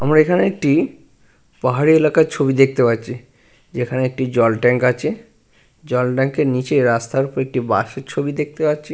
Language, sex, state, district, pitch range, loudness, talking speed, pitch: Bengali, male, West Bengal, Purulia, 125-150 Hz, -18 LUFS, 155 wpm, 130 Hz